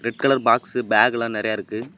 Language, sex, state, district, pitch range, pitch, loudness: Tamil, male, Tamil Nadu, Namakkal, 110-125 Hz, 115 Hz, -20 LUFS